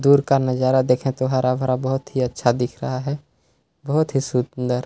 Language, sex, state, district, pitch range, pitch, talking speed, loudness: Hindi, male, Chhattisgarh, Balrampur, 125-135 Hz, 130 Hz, 195 wpm, -21 LUFS